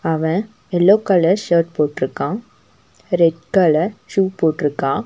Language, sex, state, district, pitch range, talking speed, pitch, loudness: Tamil, female, Tamil Nadu, Nilgiris, 160-195 Hz, 105 wpm, 175 Hz, -17 LUFS